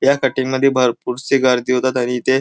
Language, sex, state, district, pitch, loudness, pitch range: Marathi, male, Maharashtra, Nagpur, 130 Hz, -17 LUFS, 125-135 Hz